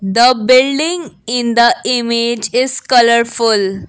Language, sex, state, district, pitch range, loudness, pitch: English, female, Assam, Kamrup Metropolitan, 230-255 Hz, -13 LUFS, 235 Hz